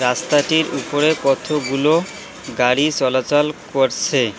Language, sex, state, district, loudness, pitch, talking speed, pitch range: Bengali, male, West Bengal, Cooch Behar, -18 LUFS, 145 Hz, 80 wpm, 135-155 Hz